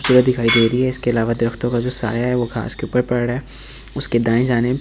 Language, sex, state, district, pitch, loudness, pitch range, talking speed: Hindi, male, Delhi, New Delhi, 120 Hz, -18 LUFS, 115-125 Hz, 260 wpm